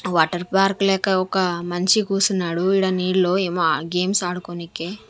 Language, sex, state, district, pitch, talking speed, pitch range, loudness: Telugu, female, Andhra Pradesh, Manyam, 185 Hz, 140 wpm, 175-195 Hz, -20 LUFS